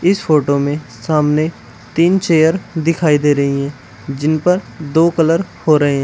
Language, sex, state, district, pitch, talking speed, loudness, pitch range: Hindi, male, Uttar Pradesh, Shamli, 155 Hz, 170 wpm, -15 LUFS, 140-165 Hz